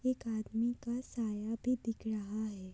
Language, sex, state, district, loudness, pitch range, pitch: Hindi, female, Uttar Pradesh, Budaun, -38 LUFS, 215-240 Hz, 225 Hz